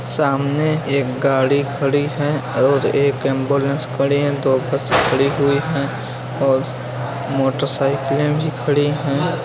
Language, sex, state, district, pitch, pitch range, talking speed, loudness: Hindi, male, Uttar Pradesh, Varanasi, 140 Hz, 135-145 Hz, 140 wpm, -18 LUFS